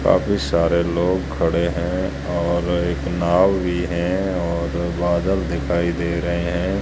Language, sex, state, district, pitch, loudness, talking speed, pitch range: Hindi, male, Rajasthan, Jaisalmer, 85 Hz, -20 LUFS, 140 wpm, 85-90 Hz